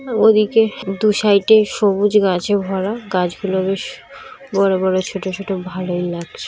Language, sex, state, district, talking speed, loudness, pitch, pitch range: Bengali, female, West Bengal, North 24 Parganas, 140 wpm, -17 LUFS, 195 Hz, 190-215 Hz